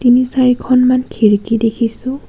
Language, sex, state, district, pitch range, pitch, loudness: Assamese, female, Assam, Kamrup Metropolitan, 230-255 Hz, 250 Hz, -13 LUFS